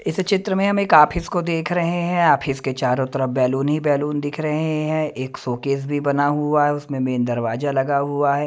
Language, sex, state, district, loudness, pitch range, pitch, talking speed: Hindi, male, Himachal Pradesh, Shimla, -20 LUFS, 135-155 Hz, 145 Hz, 225 wpm